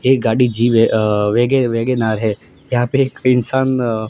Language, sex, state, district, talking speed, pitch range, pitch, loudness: Hindi, male, Gujarat, Gandhinagar, 175 wpm, 110-130 Hz, 120 Hz, -15 LUFS